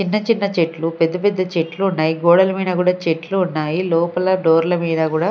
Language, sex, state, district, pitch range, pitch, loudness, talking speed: Telugu, female, Andhra Pradesh, Sri Satya Sai, 165-190 Hz, 175 Hz, -18 LUFS, 180 wpm